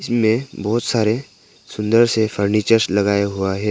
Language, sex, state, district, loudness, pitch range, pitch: Hindi, male, Arunachal Pradesh, Papum Pare, -18 LUFS, 100-115 Hz, 110 Hz